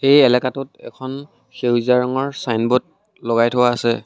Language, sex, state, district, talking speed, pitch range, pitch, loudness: Assamese, male, Assam, Sonitpur, 135 wpm, 120-135 Hz, 125 Hz, -18 LUFS